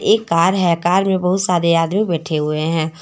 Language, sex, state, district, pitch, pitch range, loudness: Hindi, female, Jharkhand, Deoghar, 170 Hz, 165-185 Hz, -16 LUFS